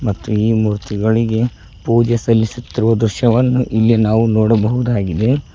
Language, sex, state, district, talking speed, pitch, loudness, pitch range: Kannada, male, Karnataka, Koppal, 95 wpm, 115 Hz, -15 LUFS, 110-120 Hz